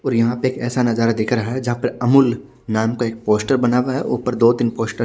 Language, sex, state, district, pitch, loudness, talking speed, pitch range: Hindi, male, Chhattisgarh, Raipur, 120 Hz, -18 LUFS, 285 wpm, 115-125 Hz